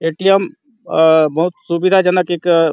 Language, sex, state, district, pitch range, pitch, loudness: Hindi, male, Chhattisgarh, Bastar, 165-190 Hz, 175 Hz, -14 LUFS